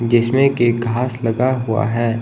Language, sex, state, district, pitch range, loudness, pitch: Hindi, male, Himachal Pradesh, Shimla, 115-125 Hz, -17 LUFS, 120 Hz